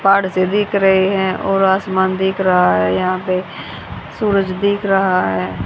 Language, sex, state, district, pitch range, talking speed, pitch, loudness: Hindi, female, Haryana, Jhajjar, 185-195 Hz, 170 wpm, 190 Hz, -16 LUFS